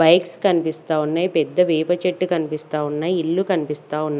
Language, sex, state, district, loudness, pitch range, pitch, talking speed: Telugu, female, Andhra Pradesh, Sri Satya Sai, -20 LUFS, 155-180 Hz, 165 Hz, 145 wpm